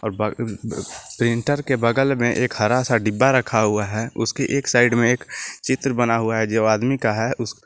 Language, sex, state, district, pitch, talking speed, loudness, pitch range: Hindi, male, Jharkhand, Garhwa, 120 Hz, 210 wpm, -20 LUFS, 110-130 Hz